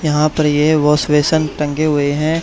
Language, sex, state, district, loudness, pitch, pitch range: Hindi, male, Haryana, Charkhi Dadri, -15 LUFS, 150 Hz, 150-155 Hz